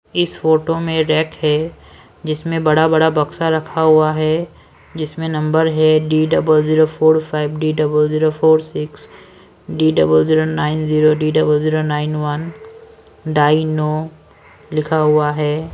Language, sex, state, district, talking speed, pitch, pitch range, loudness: Hindi, female, Maharashtra, Washim, 150 wpm, 155 Hz, 150-160 Hz, -16 LUFS